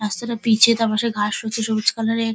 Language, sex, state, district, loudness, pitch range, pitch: Bengali, female, West Bengal, Dakshin Dinajpur, -19 LUFS, 215-230 Hz, 225 Hz